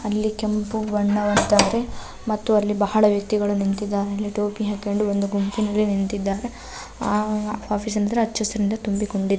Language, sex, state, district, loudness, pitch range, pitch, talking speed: Kannada, female, Karnataka, Belgaum, -22 LUFS, 205-215 Hz, 210 Hz, 130 wpm